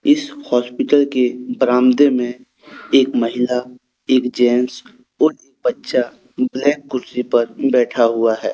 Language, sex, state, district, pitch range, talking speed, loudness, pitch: Hindi, male, Jharkhand, Deoghar, 125-135 Hz, 135 wpm, -17 LUFS, 125 Hz